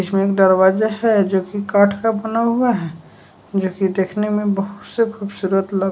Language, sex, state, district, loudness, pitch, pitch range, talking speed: Hindi, male, Bihar, West Champaran, -18 LUFS, 200 Hz, 190-215 Hz, 170 wpm